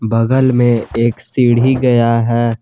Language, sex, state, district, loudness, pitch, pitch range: Hindi, male, Jharkhand, Garhwa, -13 LUFS, 120 Hz, 115-125 Hz